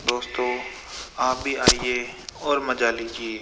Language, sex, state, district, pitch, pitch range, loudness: Hindi, male, Rajasthan, Jaipur, 125 Hz, 115-125 Hz, -24 LUFS